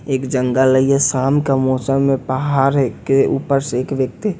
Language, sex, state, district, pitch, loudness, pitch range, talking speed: Hindi, male, Bihar, West Champaran, 135 Hz, -16 LUFS, 130-140 Hz, 205 wpm